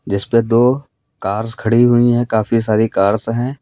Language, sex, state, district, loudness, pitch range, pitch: Hindi, male, Uttar Pradesh, Lalitpur, -15 LUFS, 110-120 Hz, 115 Hz